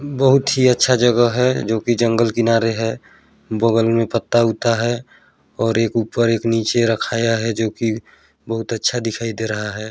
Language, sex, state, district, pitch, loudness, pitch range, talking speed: Chhattisgarhi, male, Chhattisgarh, Balrampur, 115 Hz, -18 LUFS, 115-120 Hz, 180 wpm